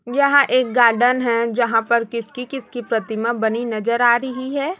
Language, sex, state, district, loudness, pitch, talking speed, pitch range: Hindi, female, Chhattisgarh, Raipur, -18 LUFS, 240 Hz, 175 wpm, 230-255 Hz